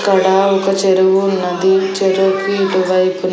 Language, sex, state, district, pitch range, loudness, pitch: Telugu, female, Andhra Pradesh, Annamaya, 185-195 Hz, -14 LUFS, 190 Hz